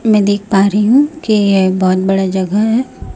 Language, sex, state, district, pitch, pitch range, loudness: Hindi, female, Chhattisgarh, Raipur, 205 Hz, 195-220 Hz, -13 LUFS